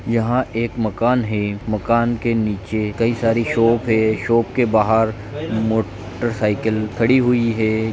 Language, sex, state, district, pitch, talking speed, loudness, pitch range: Hindi, male, Andhra Pradesh, Guntur, 115 Hz, 135 wpm, -19 LUFS, 110-115 Hz